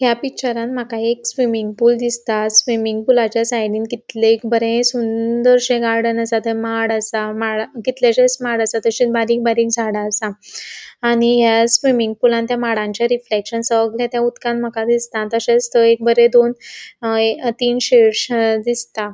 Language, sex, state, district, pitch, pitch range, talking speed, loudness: Konkani, female, Goa, North and South Goa, 230 Hz, 225-240 Hz, 145 wpm, -16 LUFS